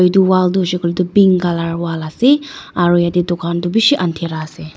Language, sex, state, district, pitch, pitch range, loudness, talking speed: Nagamese, female, Nagaland, Dimapur, 175 Hz, 170-190 Hz, -15 LUFS, 215 wpm